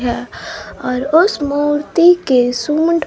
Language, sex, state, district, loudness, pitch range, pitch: Hindi, female, Bihar, Kaimur, -14 LUFS, 250-330 Hz, 295 Hz